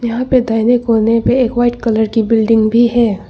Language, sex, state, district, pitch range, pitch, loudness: Hindi, female, Arunachal Pradesh, Longding, 225-240 Hz, 230 Hz, -13 LUFS